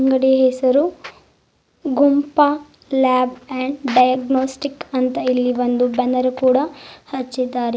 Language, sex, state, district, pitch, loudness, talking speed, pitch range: Kannada, female, Karnataka, Bidar, 260 Hz, -18 LUFS, 95 wpm, 255-275 Hz